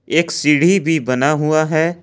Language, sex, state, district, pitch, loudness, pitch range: Hindi, male, Jharkhand, Ranchi, 155 Hz, -15 LUFS, 150-165 Hz